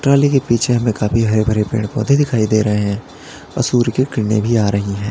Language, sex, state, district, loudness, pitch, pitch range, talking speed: Hindi, male, Uttar Pradesh, Lalitpur, -16 LUFS, 110 Hz, 105-120 Hz, 235 wpm